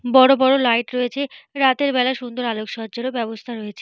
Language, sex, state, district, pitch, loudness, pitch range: Bengali, female, Jharkhand, Jamtara, 250 Hz, -19 LUFS, 235-265 Hz